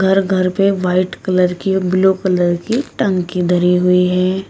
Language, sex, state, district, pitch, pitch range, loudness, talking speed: Hindi, female, Uttar Pradesh, Shamli, 185 Hz, 180-190 Hz, -15 LUFS, 175 wpm